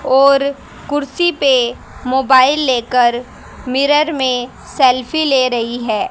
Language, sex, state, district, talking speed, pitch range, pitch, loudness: Hindi, female, Haryana, Jhajjar, 110 wpm, 250-280 Hz, 265 Hz, -14 LUFS